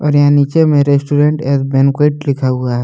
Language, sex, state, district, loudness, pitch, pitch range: Hindi, male, Jharkhand, Palamu, -12 LUFS, 145 Hz, 135-150 Hz